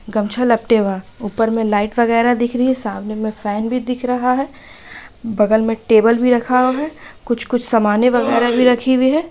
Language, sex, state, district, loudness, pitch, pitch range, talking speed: Hindi, female, Bihar, Araria, -16 LUFS, 235 Hz, 220-250 Hz, 180 wpm